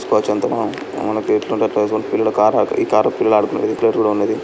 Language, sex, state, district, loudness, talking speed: Telugu, male, Andhra Pradesh, Srikakulam, -17 LUFS, 80 wpm